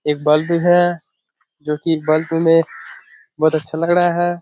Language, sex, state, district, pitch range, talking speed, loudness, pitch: Hindi, male, Bihar, Kishanganj, 155-170 Hz, 190 wpm, -17 LUFS, 165 Hz